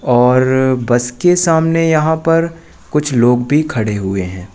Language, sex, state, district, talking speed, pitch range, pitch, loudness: Hindi, male, Madhya Pradesh, Katni, 160 wpm, 120-160 Hz, 130 Hz, -14 LUFS